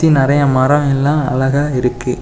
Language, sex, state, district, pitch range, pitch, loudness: Tamil, male, Tamil Nadu, Kanyakumari, 130-145 Hz, 140 Hz, -14 LUFS